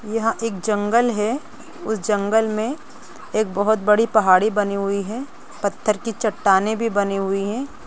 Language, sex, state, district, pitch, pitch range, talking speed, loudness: Hindi, female, Chhattisgarh, Rajnandgaon, 215 Hz, 200-225 Hz, 160 wpm, -20 LUFS